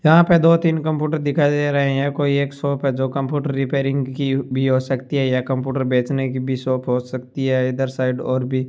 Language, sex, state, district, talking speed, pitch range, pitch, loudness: Hindi, male, Rajasthan, Bikaner, 240 wpm, 130-145 Hz, 135 Hz, -20 LUFS